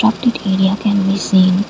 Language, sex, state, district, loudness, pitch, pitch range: English, female, Assam, Kamrup Metropolitan, -15 LUFS, 195 Hz, 190-210 Hz